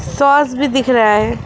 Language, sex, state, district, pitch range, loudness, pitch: Hindi, female, West Bengal, Alipurduar, 225-285 Hz, -13 LUFS, 265 Hz